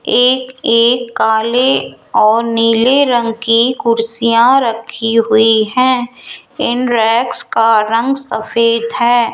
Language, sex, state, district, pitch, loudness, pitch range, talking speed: Hindi, female, Rajasthan, Jaipur, 230 Hz, -12 LUFS, 225-245 Hz, 110 wpm